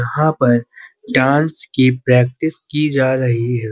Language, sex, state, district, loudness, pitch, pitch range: Hindi, male, Uttar Pradesh, Budaun, -16 LUFS, 130 Hz, 125-150 Hz